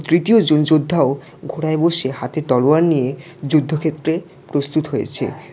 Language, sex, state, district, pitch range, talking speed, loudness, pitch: Bengali, male, West Bengal, Alipurduar, 140-165 Hz, 110 wpm, -17 LUFS, 155 Hz